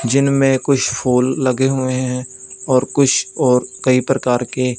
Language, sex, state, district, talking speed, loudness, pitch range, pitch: Hindi, male, Punjab, Fazilka, 150 wpm, -16 LUFS, 125-135 Hz, 130 Hz